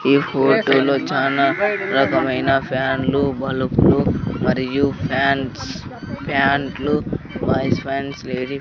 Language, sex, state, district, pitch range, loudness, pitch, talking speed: Telugu, male, Andhra Pradesh, Sri Satya Sai, 135-140 Hz, -19 LUFS, 135 Hz, 120 wpm